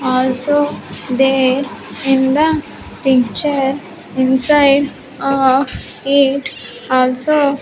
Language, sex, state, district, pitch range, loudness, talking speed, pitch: English, female, Andhra Pradesh, Sri Satya Sai, 260-285 Hz, -15 LUFS, 70 wpm, 270 Hz